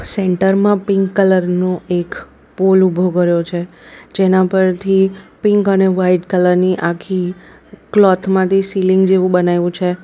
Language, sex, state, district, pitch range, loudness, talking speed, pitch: Gujarati, female, Gujarat, Valsad, 180-190 Hz, -14 LUFS, 130 wpm, 185 Hz